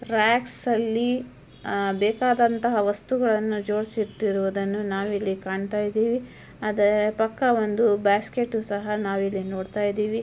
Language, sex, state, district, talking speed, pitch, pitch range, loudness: Kannada, female, Karnataka, Dharwad, 100 wpm, 210 Hz, 205-230 Hz, -24 LUFS